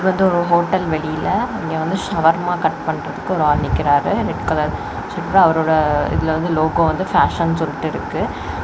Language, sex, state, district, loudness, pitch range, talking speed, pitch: Tamil, female, Tamil Nadu, Kanyakumari, -18 LUFS, 155-185 Hz, 165 wpm, 165 Hz